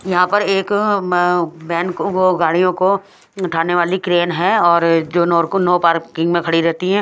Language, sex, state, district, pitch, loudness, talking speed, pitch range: Hindi, female, Haryana, Charkhi Dadri, 175 Hz, -16 LUFS, 205 wpm, 170-185 Hz